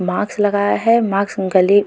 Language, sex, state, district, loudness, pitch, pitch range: Hindi, female, Uttarakhand, Tehri Garhwal, -16 LUFS, 200 Hz, 190-210 Hz